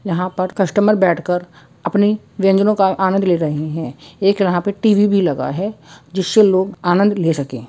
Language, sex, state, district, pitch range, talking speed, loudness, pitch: Hindi, male, West Bengal, Kolkata, 165-200 Hz, 180 wpm, -16 LUFS, 185 Hz